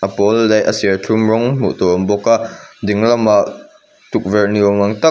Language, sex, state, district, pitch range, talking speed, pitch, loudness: Mizo, male, Mizoram, Aizawl, 100-115 Hz, 200 wpm, 110 Hz, -14 LUFS